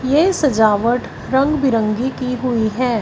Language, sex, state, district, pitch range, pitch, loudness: Hindi, female, Punjab, Fazilka, 225-270 Hz, 250 Hz, -17 LUFS